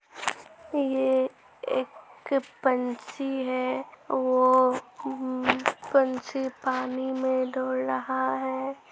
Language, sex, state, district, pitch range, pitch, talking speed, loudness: Hindi, female, Uttar Pradesh, Muzaffarnagar, 255-265 Hz, 260 Hz, 85 wpm, -27 LUFS